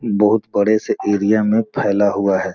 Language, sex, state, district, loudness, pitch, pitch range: Hindi, male, Bihar, Gopalganj, -17 LUFS, 105 Hz, 100-110 Hz